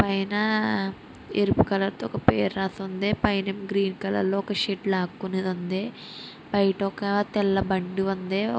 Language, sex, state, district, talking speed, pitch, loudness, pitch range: Telugu, female, Andhra Pradesh, Srikakulam, 145 wpm, 195 Hz, -26 LUFS, 195-205 Hz